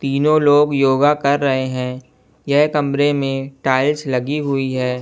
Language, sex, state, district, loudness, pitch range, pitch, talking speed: Hindi, male, Bihar, West Champaran, -17 LUFS, 130-145 Hz, 140 Hz, 155 wpm